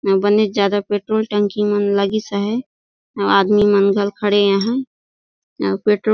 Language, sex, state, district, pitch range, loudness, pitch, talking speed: Surgujia, female, Chhattisgarh, Sarguja, 200-210 Hz, -17 LUFS, 205 Hz, 165 wpm